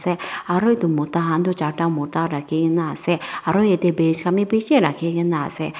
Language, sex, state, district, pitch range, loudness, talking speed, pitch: Nagamese, female, Nagaland, Dimapur, 160-180 Hz, -20 LUFS, 145 wpm, 170 Hz